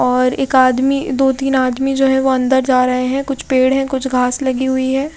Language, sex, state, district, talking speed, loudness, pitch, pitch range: Hindi, female, Chhattisgarh, Raipur, 245 wpm, -15 LUFS, 265 Hz, 255-270 Hz